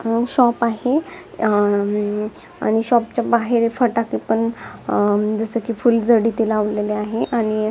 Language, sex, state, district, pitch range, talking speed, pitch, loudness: Marathi, female, Maharashtra, Dhule, 215-235 Hz, 150 wpm, 225 Hz, -19 LUFS